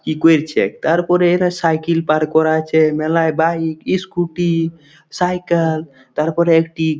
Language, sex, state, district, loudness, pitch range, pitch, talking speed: Bengali, male, West Bengal, Malda, -16 LUFS, 155-170 Hz, 165 Hz, 130 wpm